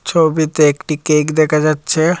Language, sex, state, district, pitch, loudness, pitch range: Bengali, male, Tripura, Dhalai, 155 Hz, -14 LUFS, 150-160 Hz